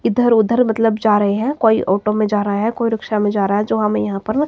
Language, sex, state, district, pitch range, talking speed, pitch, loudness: Hindi, female, Himachal Pradesh, Shimla, 205-225 Hz, 295 wpm, 215 Hz, -16 LUFS